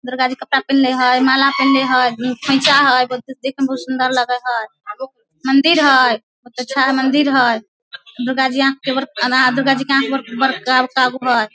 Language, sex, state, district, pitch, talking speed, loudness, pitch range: Maithili, female, Bihar, Samastipur, 260 Hz, 160 wpm, -15 LUFS, 250-270 Hz